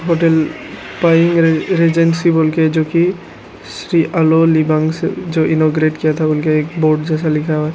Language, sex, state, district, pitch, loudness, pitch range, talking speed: Hindi, male, Arunachal Pradesh, Lower Dibang Valley, 160 Hz, -14 LUFS, 155-165 Hz, 165 wpm